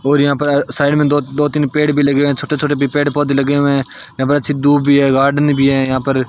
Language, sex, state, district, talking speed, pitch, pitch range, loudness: Hindi, male, Rajasthan, Bikaner, 305 wpm, 145 Hz, 140-145 Hz, -14 LUFS